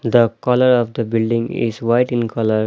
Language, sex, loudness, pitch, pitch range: English, male, -17 LUFS, 115 Hz, 115-120 Hz